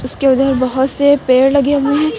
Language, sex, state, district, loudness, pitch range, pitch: Hindi, female, Uttar Pradesh, Lucknow, -13 LUFS, 260-285 Hz, 275 Hz